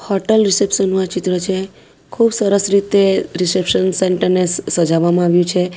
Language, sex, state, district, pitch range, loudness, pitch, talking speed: Gujarati, female, Gujarat, Valsad, 180-200 Hz, -15 LUFS, 190 Hz, 165 wpm